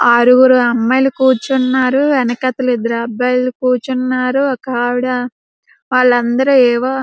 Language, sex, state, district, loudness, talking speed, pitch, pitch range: Telugu, female, Andhra Pradesh, Srikakulam, -13 LUFS, 95 wpm, 255 Hz, 245-260 Hz